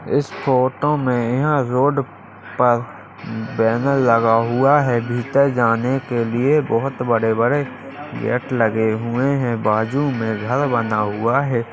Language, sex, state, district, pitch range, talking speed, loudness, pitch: Hindi, male, Uttarakhand, Tehri Garhwal, 115-135 Hz, 140 wpm, -18 LUFS, 120 Hz